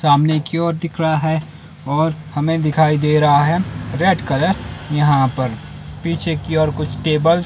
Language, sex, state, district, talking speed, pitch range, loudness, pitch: Hindi, male, Himachal Pradesh, Shimla, 175 wpm, 145-160 Hz, -17 LUFS, 155 Hz